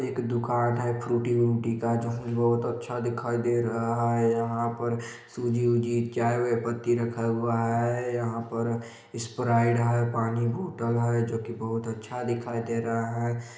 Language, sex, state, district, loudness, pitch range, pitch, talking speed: Hindi, male, Chhattisgarh, Balrampur, -28 LUFS, 115-120 Hz, 120 Hz, 170 wpm